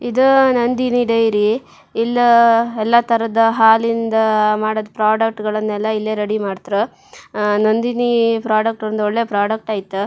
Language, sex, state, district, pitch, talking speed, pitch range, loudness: Kannada, female, Karnataka, Shimoga, 220 Hz, 120 wpm, 215-235 Hz, -16 LUFS